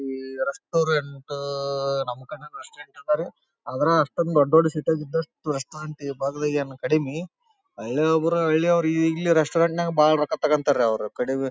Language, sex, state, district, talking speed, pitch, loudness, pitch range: Kannada, male, Karnataka, Bellary, 150 wpm, 155 Hz, -23 LUFS, 140-165 Hz